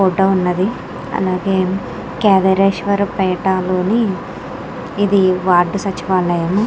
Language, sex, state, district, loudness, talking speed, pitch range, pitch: Telugu, female, Andhra Pradesh, Krishna, -16 LUFS, 80 wpm, 185-195 Hz, 190 Hz